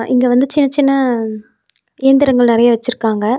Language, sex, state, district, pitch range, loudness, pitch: Tamil, female, Tamil Nadu, Nilgiris, 230-270 Hz, -13 LUFS, 250 Hz